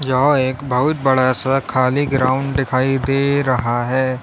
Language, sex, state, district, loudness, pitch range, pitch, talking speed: Hindi, male, Uttar Pradesh, Lalitpur, -17 LUFS, 130-135 Hz, 130 Hz, 155 wpm